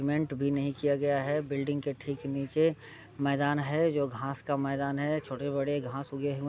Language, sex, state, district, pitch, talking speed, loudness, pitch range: Hindi, male, Bihar, Sitamarhi, 140 Hz, 205 wpm, -31 LUFS, 140-145 Hz